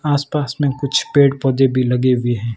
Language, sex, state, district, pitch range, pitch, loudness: Hindi, male, Rajasthan, Barmer, 125-145 Hz, 135 Hz, -16 LUFS